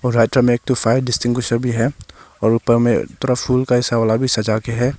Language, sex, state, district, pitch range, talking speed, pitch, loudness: Hindi, male, Arunachal Pradesh, Longding, 115-125 Hz, 195 wpm, 120 Hz, -17 LUFS